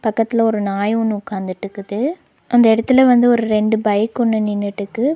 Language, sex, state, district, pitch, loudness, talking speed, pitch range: Tamil, female, Tamil Nadu, Nilgiris, 220 Hz, -17 LUFS, 150 wpm, 205-235 Hz